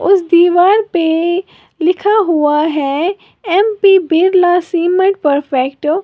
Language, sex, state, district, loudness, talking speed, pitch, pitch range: Hindi, female, Uttar Pradesh, Lalitpur, -12 LUFS, 110 wpm, 350 Hz, 320-385 Hz